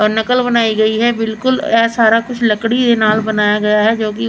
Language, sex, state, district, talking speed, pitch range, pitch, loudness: Punjabi, female, Chandigarh, Chandigarh, 225 wpm, 215-235 Hz, 225 Hz, -13 LUFS